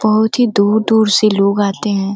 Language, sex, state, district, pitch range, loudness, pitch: Hindi, female, Uttar Pradesh, Gorakhpur, 200-220 Hz, -13 LUFS, 210 Hz